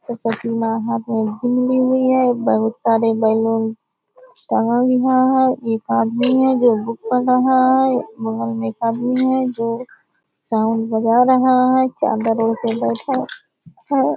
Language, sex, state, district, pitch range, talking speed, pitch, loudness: Hindi, female, Bihar, Purnia, 225-255 Hz, 150 wpm, 240 Hz, -17 LUFS